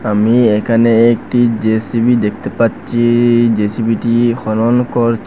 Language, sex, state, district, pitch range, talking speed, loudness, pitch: Bengali, male, Assam, Hailakandi, 110-120 Hz, 100 wpm, -13 LUFS, 115 Hz